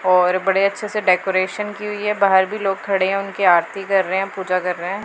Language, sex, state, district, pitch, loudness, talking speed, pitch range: Hindi, female, Punjab, Pathankot, 195 Hz, -19 LUFS, 260 wpm, 185-200 Hz